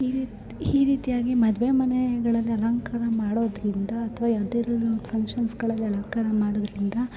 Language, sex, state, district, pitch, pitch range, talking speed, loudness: Kannada, female, Karnataka, Bellary, 230 Hz, 220-240 Hz, 115 wpm, -25 LUFS